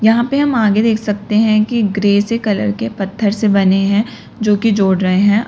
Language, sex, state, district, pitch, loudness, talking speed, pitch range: Hindi, female, Uttar Pradesh, Lalitpur, 210 Hz, -14 LUFS, 230 wpm, 200-220 Hz